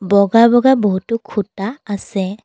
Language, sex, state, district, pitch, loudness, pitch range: Assamese, female, Assam, Kamrup Metropolitan, 205 Hz, -15 LUFS, 200-230 Hz